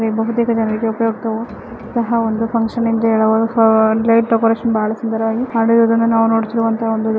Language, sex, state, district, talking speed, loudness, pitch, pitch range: Kannada, female, Karnataka, Chamarajanagar, 125 wpm, -16 LUFS, 225 Hz, 225-230 Hz